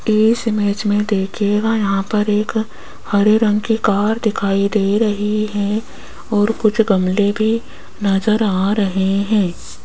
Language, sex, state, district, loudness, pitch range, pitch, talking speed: Hindi, female, Rajasthan, Jaipur, -17 LUFS, 200-215 Hz, 210 Hz, 140 wpm